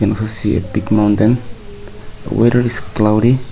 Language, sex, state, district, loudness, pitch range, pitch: English, male, Nagaland, Kohima, -15 LUFS, 105-120 Hz, 110 Hz